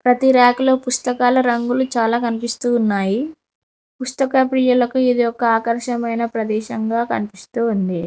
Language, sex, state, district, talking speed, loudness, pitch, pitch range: Telugu, female, Telangana, Mahabubabad, 125 wpm, -18 LUFS, 240 Hz, 230-250 Hz